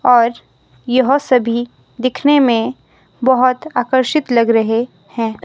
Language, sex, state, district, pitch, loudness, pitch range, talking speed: Hindi, female, Himachal Pradesh, Shimla, 250 Hz, -15 LUFS, 235-260 Hz, 110 wpm